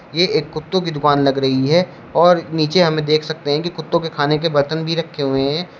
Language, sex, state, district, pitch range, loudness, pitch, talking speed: Hindi, male, Uttar Pradesh, Shamli, 145-170 Hz, -17 LUFS, 160 Hz, 250 wpm